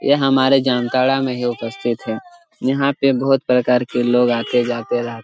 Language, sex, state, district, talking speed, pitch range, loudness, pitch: Hindi, male, Jharkhand, Jamtara, 195 wpm, 120-135 Hz, -18 LUFS, 125 Hz